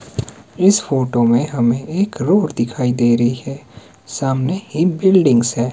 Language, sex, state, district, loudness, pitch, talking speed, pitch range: Hindi, male, Himachal Pradesh, Shimla, -16 LUFS, 130 Hz, 145 wpm, 120-170 Hz